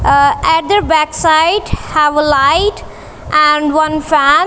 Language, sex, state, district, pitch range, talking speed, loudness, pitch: English, female, Punjab, Kapurthala, 300-325 Hz, 120 wpm, -11 LUFS, 310 Hz